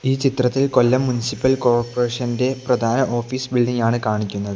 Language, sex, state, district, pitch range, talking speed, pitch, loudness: Malayalam, male, Kerala, Kollam, 120-130 Hz, 130 wpm, 125 Hz, -19 LUFS